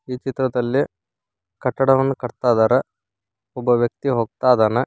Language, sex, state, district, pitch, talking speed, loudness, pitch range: Kannada, male, Karnataka, Koppal, 125 Hz, 85 wpm, -20 LUFS, 110-130 Hz